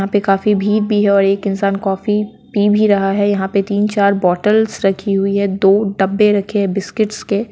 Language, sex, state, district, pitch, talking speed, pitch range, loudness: Hindi, female, Bihar, Sitamarhi, 200 Hz, 215 wpm, 195-210 Hz, -15 LUFS